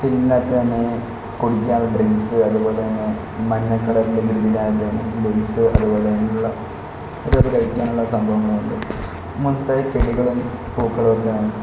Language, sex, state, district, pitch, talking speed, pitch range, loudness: Malayalam, male, Kerala, Kollam, 115 Hz, 70 wpm, 110-115 Hz, -19 LUFS